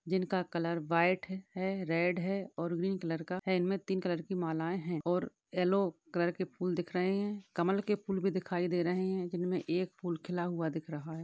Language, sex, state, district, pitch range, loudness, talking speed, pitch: Hindi, female, Maharashtra, Chandrapur, 170-190 Hz, -34 LUFS, 220 wpm, 180 Hz